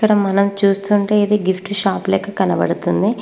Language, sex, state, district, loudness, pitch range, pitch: Telugu, female, Telangana, Mahabubabad, -17 LUFS, 195-205 Hz, 200 Hz